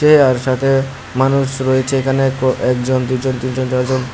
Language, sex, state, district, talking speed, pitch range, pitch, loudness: Bengali, male, Tripura, Unakoti, 160 wpm, 130-135 Hz, 130 Hz, -16 LUFS